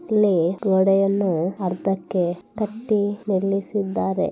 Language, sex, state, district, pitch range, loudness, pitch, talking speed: Kannada, female, Karnataka, Bellary, 185-205 Hz, -22 LUFS, 195 Hz, 70 wpm